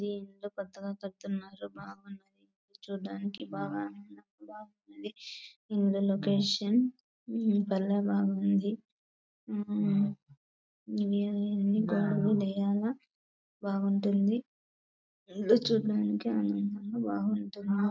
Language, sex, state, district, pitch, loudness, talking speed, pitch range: Telugu, female, Andhra Pradesh, Chittoor, 200 Hz, -31 LUFS, 55 wpm, 195-210 Hz